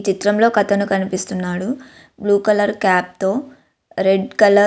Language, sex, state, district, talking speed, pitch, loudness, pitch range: Telugu, female, Andhra Pradesh, Visakhapatnam, 155 wpm, 200 Hz, -18 LUFS, 190-210 Hz